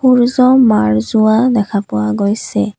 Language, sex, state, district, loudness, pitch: Assamese, female, Assam, Kamrup Metropolitan, -12 LUFS, 215 Hz